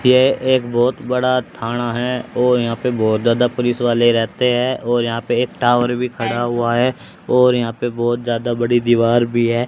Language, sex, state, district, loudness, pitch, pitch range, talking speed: Hindi, male, Haryana, Rohtak, -17 LUFS, 120 Hz, 120-125 Hz, 205 wpm